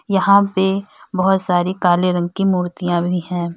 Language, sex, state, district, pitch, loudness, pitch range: Hindi, female, Uttar Pradesh, Lalitpur, 180 Hz, -17 LUFS, 175-195 Hz